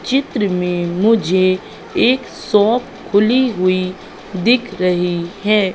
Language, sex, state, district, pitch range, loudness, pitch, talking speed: Hindi, female, Madhya Pradesh, Katni, 185-230 Hz, -16 LUFS, 200 Hz, 105 wpm